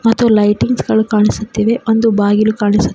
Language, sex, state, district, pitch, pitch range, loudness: Kannada, female, Karnataka, Koppal, 215 Hz, 205-225 Hz, -13 LUFS